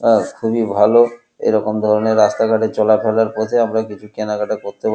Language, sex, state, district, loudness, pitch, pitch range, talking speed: Bengali, male, West Bengal, Kolkata, -16 LUFS, 110 Hz, 105-110 Hz, 170 wpm